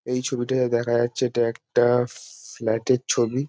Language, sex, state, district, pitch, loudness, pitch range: Bengali, male, West Bengal, Jalpaiguri, 120 Hz, -23 LUFS, 120-125 Hz